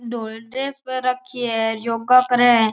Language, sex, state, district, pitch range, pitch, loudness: Marwari, male, Rajasthan, Churu, 230-255 Hz, 245 Hz, -20 LUFS